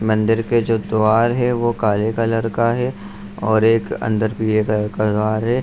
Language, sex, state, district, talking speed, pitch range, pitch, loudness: Hindi, male, Bihar, Saharsa, 190 wpm, 110-115 Hz, 110 Hz, -18 LUFS